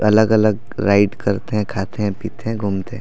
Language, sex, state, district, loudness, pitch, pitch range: Chhattisgarhi, male, Chhattisgarh, Raigarh, -19 LUFS, 105 Hz, 100-110 Hz